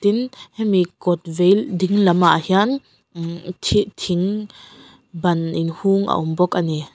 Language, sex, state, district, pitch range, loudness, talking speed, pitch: Mizo, female, Mizoram, Aizawl, 170-205 Hz, -19 LUFS, 145 wpm, 180 Hz